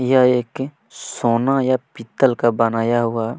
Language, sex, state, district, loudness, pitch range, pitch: Hindi, male, Chhattisgarh, Kabirdham, -18 LUFS, 115-130 Hz, 120 Hz